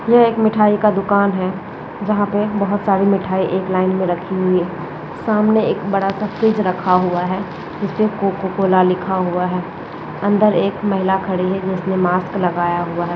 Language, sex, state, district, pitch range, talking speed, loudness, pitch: Hindi, female, Rajasthan, Nagaur, 185-205 Hz, 185 wpm, -17 LUFS, 190 Hz